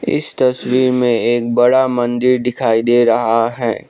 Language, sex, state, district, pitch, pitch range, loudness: Hindi, male, Sikkim, Gangtok, 120 Hz, 115-125 Hz, -14 LUFS